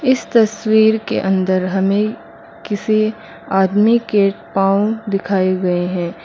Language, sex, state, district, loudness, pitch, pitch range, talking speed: Hindi, female, Mizoram, Aizawl, -16 LUFS, 205 Hz, 190-220 Hz, 115 wpm